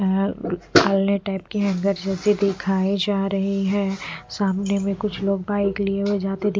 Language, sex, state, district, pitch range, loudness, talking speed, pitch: Hindi, female, Punjab, Pathankot, 195-200 Hz, -22 LUFS, 175 wpm, 195 Hz